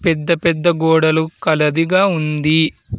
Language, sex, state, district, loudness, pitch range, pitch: Telugu, male, Andhra Pradesh, Sri Satya Sai, -15 LUFS, 155-170 Hz, 160 Hz